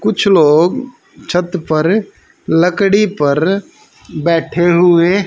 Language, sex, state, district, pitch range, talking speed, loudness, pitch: Hindi, female, Haryana, Jhajjar, 165-200 Hz, 90 wpm, -13 LUFS, 175 Hz